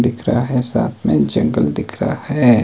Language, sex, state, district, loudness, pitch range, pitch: Hindi, male, Himachal Pradesh, Shimla, -17 LUFS, 120-125 Hz, 125 Hz